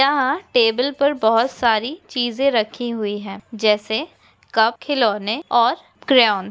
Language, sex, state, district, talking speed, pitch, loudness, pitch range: Hindi, female, Maharashtra, Pune, 150 wpm, 235 Hz, -19 LUFS, 220-275 Hz